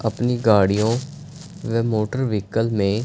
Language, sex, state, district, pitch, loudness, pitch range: Hindi, male, Punjab, Fazilka, 115 Hz, -21 LUFS, 105-125 Hz